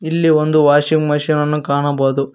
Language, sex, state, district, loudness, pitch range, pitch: Kannada, male, Karnataka, Koppal, -15 LUFS, 145-155 Hz, 150 Hz